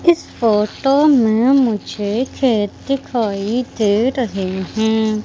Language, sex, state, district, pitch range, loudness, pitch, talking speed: Hindi, female, Madhya Pradesh, Katni, 210-260 Hz, -17 LUFS, 225 Hz, 105 wpm